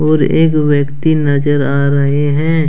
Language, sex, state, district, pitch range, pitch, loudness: Hindi, male, Jharkhand, Deoghar, 140-155 Hz, 145 Hz, -13 LUFS